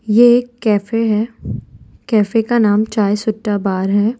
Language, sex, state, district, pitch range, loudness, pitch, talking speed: Hindi, female, Gujarat, Valsad, 205-230 Hz, -15 LUFS, 215 Hz, 155 wpm